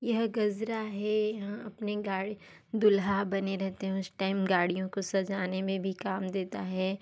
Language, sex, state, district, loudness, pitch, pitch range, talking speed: Hindi, female, Chhattisgarh, Sarguja, -31 LUFS, 195 Hz, 190-210 Hz, 170 wpm